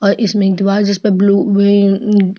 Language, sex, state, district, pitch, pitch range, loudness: Hindi, female, Chhattisgarh, Jashpur, 200 Hz, 195-205 Hz, -12 LUFS